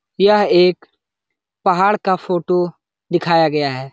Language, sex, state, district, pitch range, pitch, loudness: Hindi, male, Uttar Pradesh, Etah, 165-190 Hz, 180 Hz, -16 LUFS